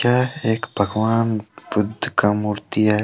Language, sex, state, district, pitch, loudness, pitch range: Hindi, male, Jharkhand, Deoghar, 110 Hz, -21 LUFS, 105-115 Hz